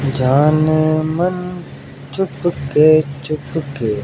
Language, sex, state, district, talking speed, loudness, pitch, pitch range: Hindi, male, Haryana, Jhajjar, 60 wpm, -16 LUFS, 155 Hz, 140-160 Hz